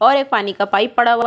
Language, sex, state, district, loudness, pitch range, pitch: Hindi, female, Chhattisgarh, Sukma, -16 LUFS, 200-240 Hz, 235 Hz